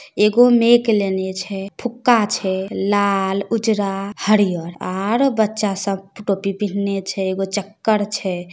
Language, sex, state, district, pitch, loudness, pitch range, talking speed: Maithili, female, Bihar, Samastipur, 200 Hz, -19 LUFS, 195-215 Hz, 125 wpm